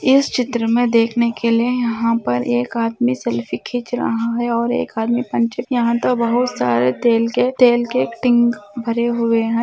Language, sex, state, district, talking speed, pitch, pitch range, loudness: Hindi, female, Rajasthan, Nagaur, 170 wpm, 235 Hz, 230-245 Hz, -18 LUFS